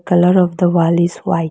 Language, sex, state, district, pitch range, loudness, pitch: English, female, Arunachal Pradesh, Lower Dibang Valley, 170-180 Hz, -14 LUFS, 175 Hz